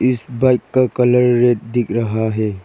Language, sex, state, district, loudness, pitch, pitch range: Hindi, female, Arunachal Pradesh, Lower Dibang Valley, -16 LUFS, 120 Hz, 110-125 Hz